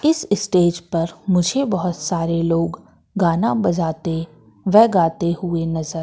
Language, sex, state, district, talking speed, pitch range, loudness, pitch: Hindi, female, Madhya Pradesh, Katni, 130 wpm, 165-190 Hz, -19 LUFS, 170 Hz